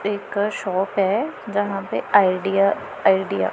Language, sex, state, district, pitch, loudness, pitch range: Hindi, female, Punjab, Pathankot, 195 Hz, -21 LUFS, 190-205 Hz